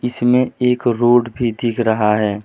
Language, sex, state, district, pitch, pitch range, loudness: Hindi, male, Jharkhand, Deoghar, 120 Hz, 110-125 Hz, -16 LUFS